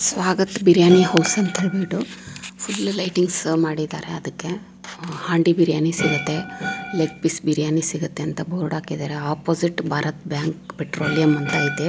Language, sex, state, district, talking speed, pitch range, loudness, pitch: Kannada, female, Karnataka, Raichur, 125 wpm, 155-180 Hz, -21 LUFS, 165 Hz